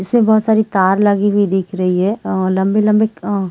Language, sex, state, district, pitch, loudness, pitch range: Hindi, female, Chhattisgarh, Sarguja, 200 Hz, -15 LUFS, 190-215 Hz